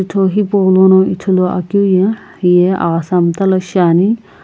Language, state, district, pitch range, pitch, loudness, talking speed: Sumi, Nagaland, Kohima, 180-195 Hz, 185 Hz, -12 LUFS, 110 wpm